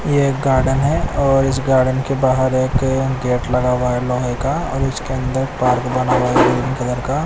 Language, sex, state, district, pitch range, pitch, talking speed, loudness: Hindi, male, Odisha, Nuapada, 125-135 Hz, 130 Hz, 225 wpm, -17 LUFS